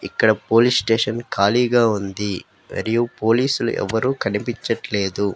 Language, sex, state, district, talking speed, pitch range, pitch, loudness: Telugu, female, Andhra Pradesh, Sri Satya Sai, 100 wpm, 100-120 Hz, 115 Hz, -20 LUFS